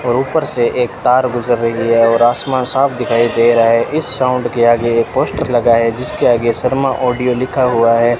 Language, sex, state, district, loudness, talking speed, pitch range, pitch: Hindi, male, Rajasthan, Bikaner, -14 LUFS, 210 wpm, 115-125 Hz, 120 Hz